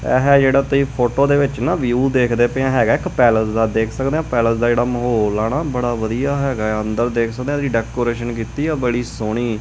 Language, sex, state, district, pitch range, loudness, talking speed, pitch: Punjabi, male, Punjab, Kapurthala, 115-135 Hz, -18 LUFS, 210 wpm, 120 Hz